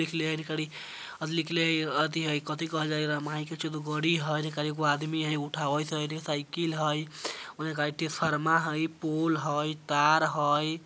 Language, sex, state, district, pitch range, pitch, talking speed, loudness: Bajjika, female, Bihar, Vaishali, 150-160 Hz, 155 Hz, 65 wpm, -29 LUFS